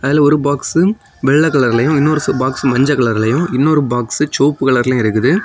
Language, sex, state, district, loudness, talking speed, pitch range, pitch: Tamil, male, Tamil Nadu, Kanyakumari, -14 LUFS, 155 wpm, 130-150 Hz, 140 Hz